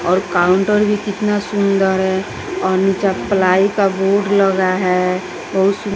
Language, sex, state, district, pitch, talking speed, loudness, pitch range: Hindi, female, Bihar, West Champaran, 195 Hz, 150 wpm, -16 LUFS, 185-200 Hz